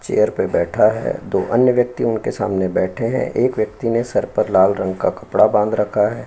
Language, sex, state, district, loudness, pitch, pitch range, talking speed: Hindi, male, Uttar Pradesh, Jyotiba Phule Nagar, -18 LUFS, 110 Hz, 105-120 Hz, 220 wpm